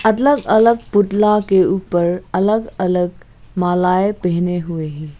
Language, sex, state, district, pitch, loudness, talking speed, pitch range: Hindi, female, Arunachal Pradesh, Lower Dibang Valley, 185 Hz, -16 LUFS, 125 wpm, 175-210 Hz